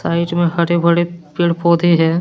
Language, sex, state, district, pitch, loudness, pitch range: Hindi, male, Jharkhand, Deoghar, 170 Hz, -15 LUFS, 170-175 Hz